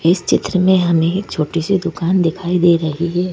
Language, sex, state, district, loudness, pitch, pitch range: Hindi, female, Madhya Pradesh, Bhopal, -16 LUFS, 175 Hz, 165-185 Hz